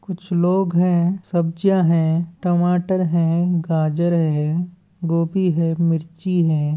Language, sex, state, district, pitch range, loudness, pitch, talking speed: Chhattisgarhi, male, Chhattisgarh, Balrampur, 165-180 Hz, -19 LUFS, 170 Hz, 115 wpm